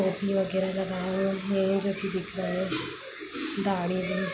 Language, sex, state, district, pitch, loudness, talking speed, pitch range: Hindi, female, Chhattisgarh, Rajnandgaon, 195 Hz, -29 LUFS, 125 wpm, 190-195 Hz